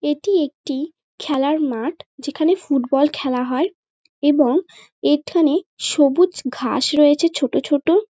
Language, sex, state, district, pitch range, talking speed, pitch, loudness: Bengali, female, West Bengal, North 24 Parganas, 280-335 Hz, 110 wpm, 295 Hz, -19 LUFS